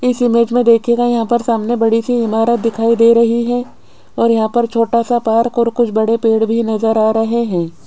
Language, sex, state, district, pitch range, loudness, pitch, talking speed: Hindi, female, Rajasthan, Jaipur, 225-235 Hz, -14 LUFS, 230 Hz, 220 wpm